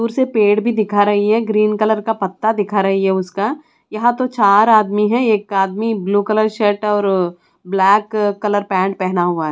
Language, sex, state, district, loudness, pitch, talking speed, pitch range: Hindi, female, Odisha, Khordha, -16 LUFS, 210 Hz, 200 wpm, 195-220 Hz